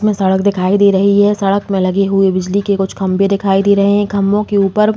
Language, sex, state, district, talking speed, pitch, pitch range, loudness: Hindi, female, Uttar Pradesh, Muzaffarnagar, 275 wpm, 200 Hz, 195-200 Hz, -13 LUFS